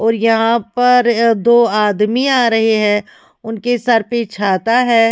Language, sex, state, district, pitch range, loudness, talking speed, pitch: Hindi, female, Himachal Pradesh, Shimla, 220-235 Hz, -14 LUFS, 150 wpm, 230 Hz